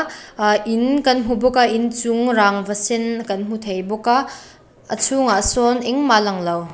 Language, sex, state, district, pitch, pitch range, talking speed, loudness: Mizo, female, Mizoram, Aizawl, 230 Hz, 205-245 Hz, 185 wpm, -18 LUFS